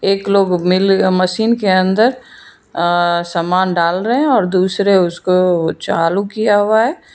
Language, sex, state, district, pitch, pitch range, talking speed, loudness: Hindi, female, Karnataka, Bangalore, 190 Hz, 180-215 Hz, 150 wpm, -14 LUFS